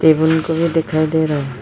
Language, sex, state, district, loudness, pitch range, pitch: Hindi, female, Arunachal Pradesh, Lower Dibang Valley, -16 LUFS, 155-160 Hz, 160 Hz